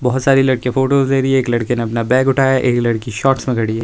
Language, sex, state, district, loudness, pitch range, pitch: Hindi, male, Himachal Pradesh, Shimla, -15 LUFS, 120-135 Hz, 130 Hz